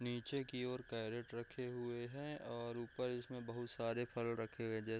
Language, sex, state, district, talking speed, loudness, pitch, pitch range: Hindi, male, Chhattisgarh, Raigarh, 205 wpm, -44 LUFS, 120 Hz, 115-125 Hz